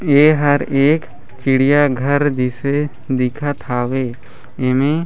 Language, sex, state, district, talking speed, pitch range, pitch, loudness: Chhattisgarhi, male, Chhattisgarh, Raigarh, 105 wpm, 130-145 Hz, 140 Hz, -16 LUFS